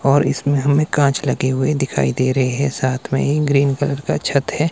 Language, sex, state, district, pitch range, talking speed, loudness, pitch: Hindi, male, Himachal Pradesh, Shimla, 135-145 Hz, 230 wpm, -18 LUFS, 140 Hz